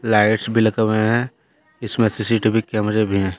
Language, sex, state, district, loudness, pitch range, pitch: Hindi, male, Jharkhand, Deoghar, -18 LUFS, 105-115 Hz, 110 Hz